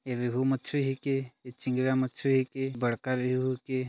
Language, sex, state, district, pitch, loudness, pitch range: Chhattisgarhi, male, Chhattisgarh, Jashpur, 130 Hz, -30 LUFS, 125-135 Hz